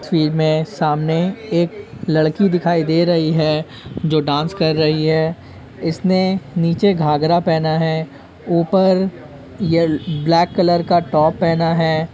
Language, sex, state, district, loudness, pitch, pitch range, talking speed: Hindi, male, Uttar Pradesh, Ghazipur, -17 LUFS, 165 Hz, 155-175 Hz, 140 wpm